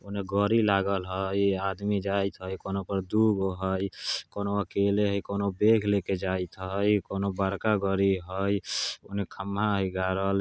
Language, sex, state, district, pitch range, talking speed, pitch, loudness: Bajjika, male, Bihar, Vaishali, 95-100 Hz, 160 wpm, 100 Hz, -28 LUFS